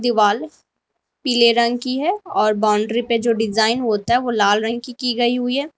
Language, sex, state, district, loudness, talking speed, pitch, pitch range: Hindi, female, Uttar Pradesh, Lalitpur, -18 LUFS, 205 wpm, 235 Hz, 220-250 Hz